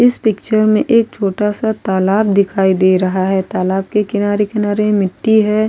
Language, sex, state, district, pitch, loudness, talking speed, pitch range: Hindi, female, Goa, North and South Goa, 210 Hz, -14 LUFS, 170 wpm, 195-215 Hz